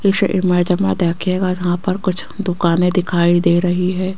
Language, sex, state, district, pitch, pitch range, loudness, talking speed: Hindi, female, Rajasthan, Jaipur, 180 Hz, 175-185 Hz, -17 LUFS, 170 wpm